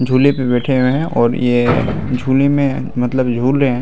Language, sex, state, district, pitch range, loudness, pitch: Hindi, male, Bihar, Araria, 125-135 Hz, -15 LUFS, 130 Hz